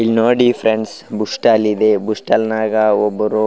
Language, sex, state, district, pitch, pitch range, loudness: Kannada, male, Karnataka, Raichur, 110 Hz, 105-110 Hz, -15 LUFS